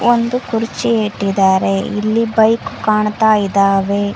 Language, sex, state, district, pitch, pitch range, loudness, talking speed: Kannada, female, Karnataka, Koppal, 215 Hz, 200-225 Hz, -15 LUFS, 85 wpm